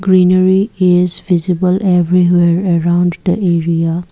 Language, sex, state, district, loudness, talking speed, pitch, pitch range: English, female, Assam, Kamrup Metropolitan, -12 LUFS, 100 wpm, 180 Hz, 175-185 Hz